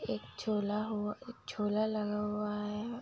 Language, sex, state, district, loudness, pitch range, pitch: Hindi, female, Bihar, Kishanganj, -36 LUFS, 210-215 Hz, 210 Hz